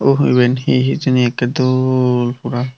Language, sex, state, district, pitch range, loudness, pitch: Chakma, female, Tripura, Unakoti, 125-130 Hz, -15 LUFS, 130 Hz